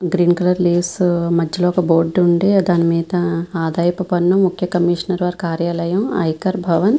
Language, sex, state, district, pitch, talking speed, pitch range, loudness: Telugu, female, Andhra Pradesh, Visakhapatnam, 175 Hz, 155 wpm, 170-180 Hz, -17 LUFS